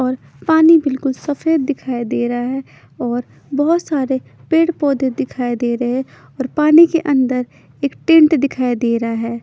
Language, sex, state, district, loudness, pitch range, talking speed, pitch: Hindi, female, Chandigarh, Chandigarh, -16 LUFS, 245-305 Hz, 155 wpm, 270 Hz